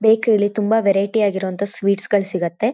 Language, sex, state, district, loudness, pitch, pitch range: Kannada, female, Karnataka, Shimoga, -18 LUFS, 205 Hz, 195-220 Hz